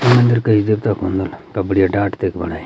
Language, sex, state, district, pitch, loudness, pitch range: Garhwali, male, Uttarakhand, Uttarkashi, 100 Hz, -17 LUFS, 95-110 Hz